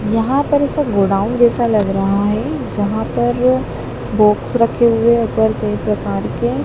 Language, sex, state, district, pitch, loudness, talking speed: Hindi, female, Madhya Pradesh, Dhar, 210 Hz, -16 LUFS, 145 wpm